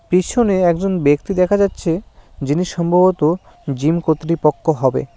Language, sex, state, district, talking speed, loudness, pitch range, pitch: Bengali, male, West Bengal, Cooch Behar, 115 wpm, -17 LUFS, 155-185 Hz, 170 Hz